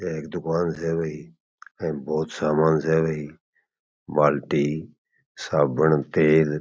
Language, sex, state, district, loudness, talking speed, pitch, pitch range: Marwari, male, Rajasthan, Churu, -23 LUFS, 110 wpm, 80 Hz, 75-80 Hz